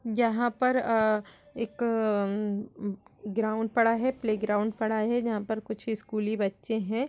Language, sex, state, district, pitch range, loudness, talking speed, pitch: Hindi, female, Uttar Pradesh, Etah, 210-230 Hz, -29 LUFS, 150 wpm, 220 Hz